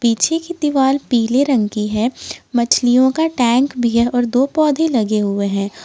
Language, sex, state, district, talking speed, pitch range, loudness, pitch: Hindi, female, Jharkhand, Ranchi, 185 wpm, 230-280 Hz, -16 LUFS, 245 Hz